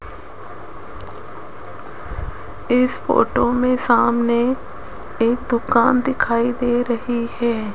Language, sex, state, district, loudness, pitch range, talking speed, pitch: Hindi, female, Rajasthan, Jaipur, -18 LUFS, 235-250 Hz, 75 wpm, 240 Hz